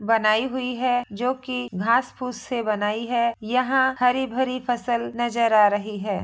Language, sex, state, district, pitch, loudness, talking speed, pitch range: Hindi, female, Bihar, Bhagalpur, 240 Hz, -23 LUFS, 165 wpm, 220-255 Hz